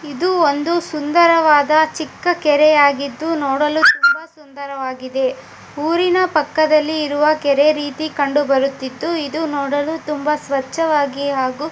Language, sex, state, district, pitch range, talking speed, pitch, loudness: Kannada, female, Karnataka, Bijapur, 280-315 Hz, 90 wpm, 300 Hz, -16 LUFS